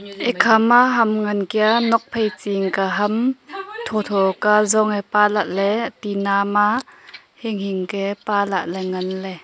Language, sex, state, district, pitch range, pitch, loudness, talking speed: Wancho, female, Arunachal Pradesh, Longding, 200-225 Hz, 210 Hz, -19 LUFS, 125 wpm